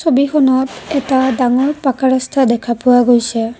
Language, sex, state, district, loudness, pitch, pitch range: Assamese, female, Assam, Kamrup Metropolitan, -14 LUFS, 260 Hz, 245-275 Hz